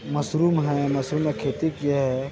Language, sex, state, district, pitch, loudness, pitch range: Hindi, male, Chhattisgarh, Bilaspur, 145 Hz, -24 LUFS, 140-155 Hz